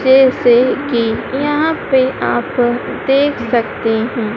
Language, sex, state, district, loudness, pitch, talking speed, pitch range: Hindi, female, Madhya Pradesh, Dhar, -14 LUFS, 250 Hz, 110 wpm, 235-270 Hz